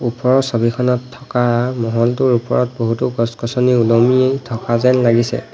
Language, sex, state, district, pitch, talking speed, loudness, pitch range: Assamese, male, Assam, Hailakandi, 120 Hz, 120 wpm, -16 LUFS, 115-125 Hz